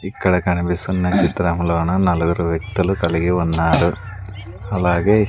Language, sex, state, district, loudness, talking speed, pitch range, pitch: Telugu, male, Andhra Pradesh, Sri Satya Sai, -18 LUFS, 90 wpm, 85-95 Hz, 90 Hz